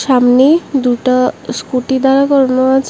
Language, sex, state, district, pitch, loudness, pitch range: Bengali, male, Tripura, West Tripura, 260 Hz, -12 LUFS, 255-270 Hz